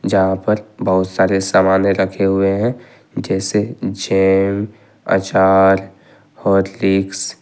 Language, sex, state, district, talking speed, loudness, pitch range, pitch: Hindi, male, Jharkhand, Ranchi, 105 wpm, -16 LUFS, 95-100 Hz, 95 Hz